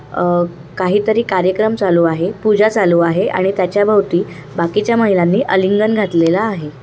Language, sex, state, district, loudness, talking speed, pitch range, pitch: Marathi, female, Maharashtra, Chandrapur, -15 LUFS, 150 wpm, 175-210 Hz, 185 Hz